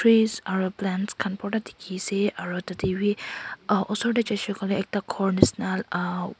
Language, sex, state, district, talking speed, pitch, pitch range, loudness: Nagamese, female, Nagaland, Kohima, 180 wpm, 195 Hz, 190-210 Hz, -26 LUFS